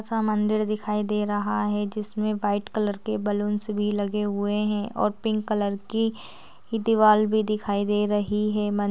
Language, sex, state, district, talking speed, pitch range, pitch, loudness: Hindi, female, Chhattisgarh, Raigarh, 180 wpm, 205-215 Hz, 210 Hz, -25 LUFS